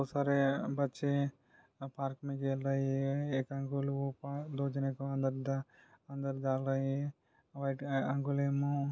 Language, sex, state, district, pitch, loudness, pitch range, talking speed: Hindi, male, Maharashtra, Solapur, 135 Hz, -36 LUFS, 135-140 Hz, 140 wpm